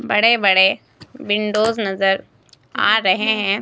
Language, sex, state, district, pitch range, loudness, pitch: Hindi, female, Himachal Pradesh, Shimla, 195-220 Hz, -16 LUFS, 210 Hz